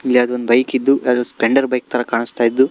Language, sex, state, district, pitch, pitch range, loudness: Kannada, male, Karnataka, Shimoga, 125 Hz, 120-130 Hz, -16 LUFS